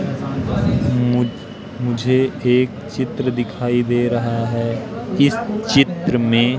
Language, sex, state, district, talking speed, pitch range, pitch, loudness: Hindi, male, Madhya Pradesh, Katni, 100 wpm, 120-130 Hz, 125 Hz, -19 LUFS